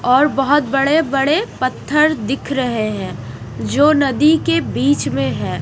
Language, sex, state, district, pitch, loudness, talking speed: Hindi, female, Odisha, Nuapada, 260 Hz, -16 LUFS, 140 wpm